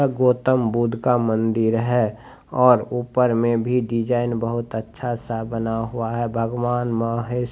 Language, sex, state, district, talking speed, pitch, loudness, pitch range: Hindi, male, Bihar, Begusarai, 160 wpm, 120 Hz, -21 LUFS, 115-125 Hz